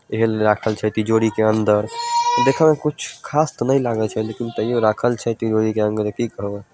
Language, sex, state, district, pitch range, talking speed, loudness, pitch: Maithili, male, Bihar, Samastipur, 110-125 Hz, 225 wpm, -19 LUFS, 110 Hz